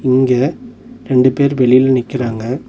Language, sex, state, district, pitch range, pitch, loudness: Tamil, male, Tamil Nadu, Nilgiris, 125-140 Hz, 130 Hz, -14 LUFS